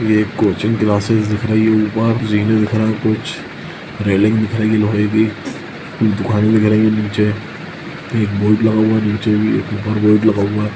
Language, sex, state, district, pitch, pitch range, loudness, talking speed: Hindi, male, Bihar, Lakhisarai, 110 Hz, 105-110 Hz, -15 LUFS, 200 wpm